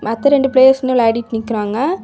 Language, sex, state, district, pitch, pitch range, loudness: Tamil, female, Tamil Nadu, Kanyakumari, 245 Hz, 225-270 Hz, -14 LUFS